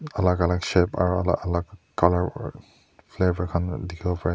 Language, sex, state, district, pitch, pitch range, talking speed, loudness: Nagamese, male, Nagaland, Dimapur, 90 Hz, 85-90 Hz, 165 wpm, -24 LUFS